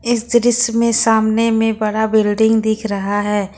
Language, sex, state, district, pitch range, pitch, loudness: Hindi, female, Jharkhand, Ranchi, 215-230 Hz, 220 Hz, -15 LUFS